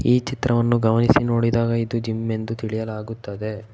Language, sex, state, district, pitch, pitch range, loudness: Kannada, male, Karnataka, Bangalore, 115 Hz, 110-120 Hz, -22 LUFS